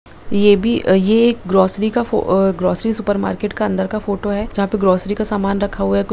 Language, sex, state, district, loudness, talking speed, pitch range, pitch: Hindi, female, Bihar, Jamui, -16 LUFS, 255 wpm, 195-215 Hz, 205 Hz